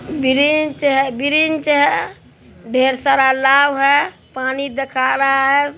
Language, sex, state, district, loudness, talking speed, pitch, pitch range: Hindi, male, Bihar, Araria, -15 LUFS, 135 wpm, 275 Hz, 265-285 Hz